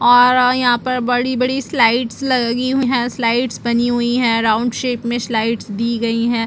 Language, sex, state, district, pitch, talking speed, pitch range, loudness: Hindi, female, Chhattisgarh, Bastar, 240 Hz, 195 wpm, 235-250 Hz, -16 LUFS